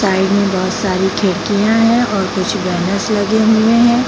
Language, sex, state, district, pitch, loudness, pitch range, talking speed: Hindi, female, Bihar, Jamui, 200 Hz, -14 LUFS, 190-220 Hz, 175 wpm